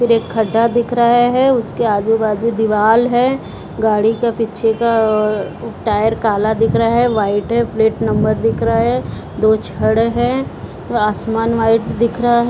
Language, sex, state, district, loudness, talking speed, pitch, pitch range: Hindi, female, Bihar, Purnia, -15 LUFS, 170 wpm, 225 Hz, 220-235 Hz